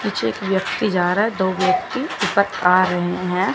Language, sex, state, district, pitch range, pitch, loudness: Hindi, female, Chandigarh, Chandigarh, 180-205 Hz, 185 Hz, -19 LUFS